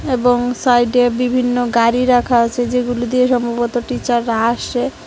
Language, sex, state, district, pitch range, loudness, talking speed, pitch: Bengali, female, Tripura, West Tripura, 240-250 Hz, -16 LUFS, 155 wpm, 245 Hz